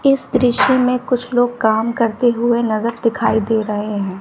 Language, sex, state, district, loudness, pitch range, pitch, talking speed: Hindi, female, Bihar, West Champaran, -17 LUFS, 220-250 Hz, 235 Hz, 185 wpm